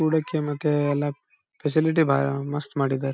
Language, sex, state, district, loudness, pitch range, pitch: Kannada, male, Karnataka, Bijapur, -24 LUFS, 140-155 Hz, 145 Hz